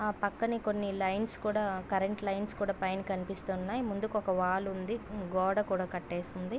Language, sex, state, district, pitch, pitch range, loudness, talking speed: Telugu, female, Andhra Pradesh, Visakhapatnam, 195 Hz, 190-210 Hz, -34 LUFS, 175 wpm